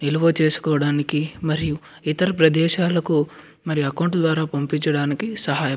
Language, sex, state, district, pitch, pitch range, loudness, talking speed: Telugu, male, Andhra Pradesh, Anantapur, 155 Hz, 150-165 Hz, -21 LUFS, 115 wpm